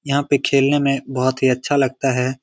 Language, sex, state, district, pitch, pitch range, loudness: Hindi, male, Bihar, Lakhisarai, 135 Hz, 130-140 Hz, -18 LUFS